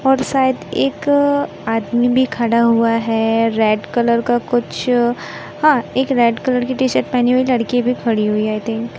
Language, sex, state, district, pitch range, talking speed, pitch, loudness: Hindi, male, Madhya Pradesh, Katni, 230-260 Hz, 195 wpm, 240 Hz, -16 LUFS